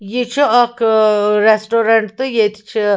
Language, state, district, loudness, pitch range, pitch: Kashmiri, Punjab, Kapurthala, -14 LUFS, 210-240 Hz, 220 Hz